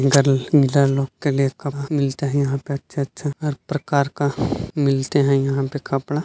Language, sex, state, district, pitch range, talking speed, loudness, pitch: Hindi, male, Chhattisgarh, Bilaspur, 135-145 Hz, 190 wpm, -21 LUFS, 140 Hz